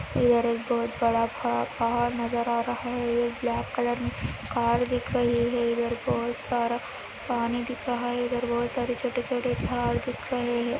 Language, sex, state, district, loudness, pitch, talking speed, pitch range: Hindi, female, Andhra Pradesh, Anantapur, -27 LUFS, 240 Hz, 185 wpm, 235-245 Hz